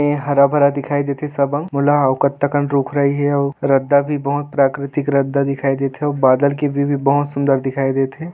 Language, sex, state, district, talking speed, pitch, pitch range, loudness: Hindi, male, Chhattisgarh, Raigarh, 230 wpm, 140 Hz, 140-145 Hz, -17 LUFS